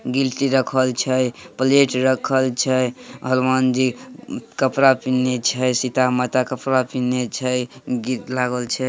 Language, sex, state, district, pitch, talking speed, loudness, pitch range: Hindi, male, Bihar, Samastipur, 130 Hz, 135 wpm, -20 LUFS, 125-130 Hz